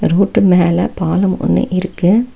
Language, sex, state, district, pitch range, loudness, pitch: Tamil, female, Tamil Nadu, Nilgiris, 180-195 Hz, -14 LUFS, 185 Hz